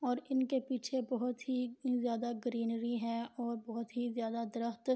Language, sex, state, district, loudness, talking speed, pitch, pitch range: Urdu, female, Andhra Pradesh, Anantapur, -37 LUFS, 155 wpm, 240 Hz, 235-255 Hz